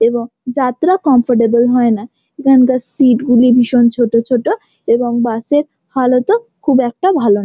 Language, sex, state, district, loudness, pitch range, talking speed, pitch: Bengali, female, West Bengal, Jhargram, -13 LUFS, 235-270 Hz, 170 wpm, 250 Hz